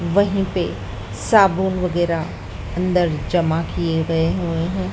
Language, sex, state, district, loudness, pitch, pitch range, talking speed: Hindi, female, Madhya Pradesh, Dhar, -20 LUFS, 170 Hz, 160-180 Hz, 110 wpm